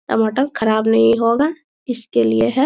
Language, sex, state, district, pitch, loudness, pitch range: Hindi, female, Bihar, Bhagalpur, 230 Hz, -17 LUFS, 220-270 Hz